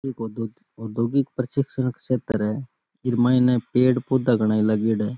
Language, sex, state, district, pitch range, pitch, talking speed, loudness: Rajasthani, male, Rajasthan, Nagaur, 110-130 Hz, 125 Hz, 175 wpm, -23 LUFS